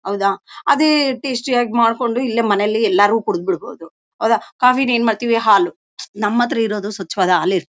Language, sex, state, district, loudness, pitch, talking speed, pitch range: Kannada, female, Karnataka, Bellary, -17 LUFS, 230 Hz, 155 wpm, 205-250 Hz